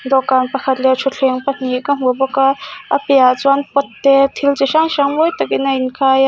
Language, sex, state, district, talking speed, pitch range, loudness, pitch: Mizo, female, Mizoram, Aizawl, 230 wpm, 260-280 Hz, -15 LUFS, 270 Hz